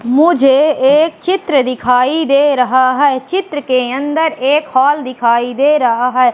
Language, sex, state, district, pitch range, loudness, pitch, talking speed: Hindi, female, Madhya Pradesh, Katni, 255-300 Hz, -12 LUFS, 270 Hz, 150 wpm